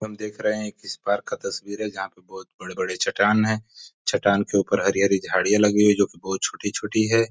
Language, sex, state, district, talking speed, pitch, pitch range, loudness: Hindi, male, Bihar, East Champaran, 245 wpm, 105 Hz, 100-105 Hz, -23 LUFS